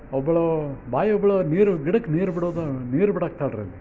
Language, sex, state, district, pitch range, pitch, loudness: Kannada, male, Karnataka, Bijapur, 135-190 Hz, 165 Hz, -23 LUFS